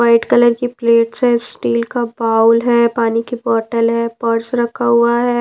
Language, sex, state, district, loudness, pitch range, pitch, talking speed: Hindi, female, Punjab, Pathankot, -15 LUFS, 230-240 Hz, 235 Hz, 190 wpm